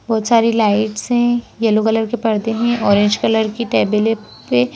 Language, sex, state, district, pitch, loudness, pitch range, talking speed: Hindi, female, Madhya Pradesh, Bhopal, 220 Hz, -16 LUFS, 215-230 Hz, 200 wpm